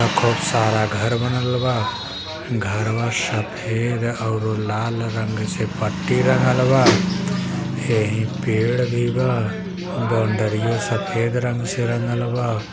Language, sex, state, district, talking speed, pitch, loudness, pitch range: Bhojpuri, male, Uttar Pradesh, Gorakhpur, 110 wpm, 115 Hz, -21 LUFS, 110-120 Hz